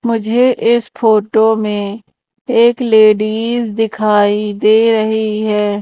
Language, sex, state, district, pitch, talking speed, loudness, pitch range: Hindi, female, Madhya Pradesh, Umaria, 220 Hz, 105 wpm, -13 LUFS, 210-230 Hz